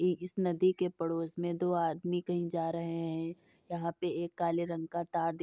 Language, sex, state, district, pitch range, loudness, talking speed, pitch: Hindi, female, Uttar Pradesh, Etah, 165-175 Hz, -34 LUFS, 230 wpm, 170 Hz